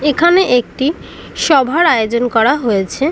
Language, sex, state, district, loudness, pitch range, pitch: Bengali, female, West Bengal, Dakshin Dinajpur, -13 LUFS, 235-315 Hz, 275 Hz